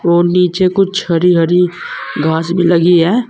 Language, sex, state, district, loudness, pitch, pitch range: Hindi, male, Uttar Pradesh, Saharanpur, -12 LUFS, 175 Hz, 170-180 Hz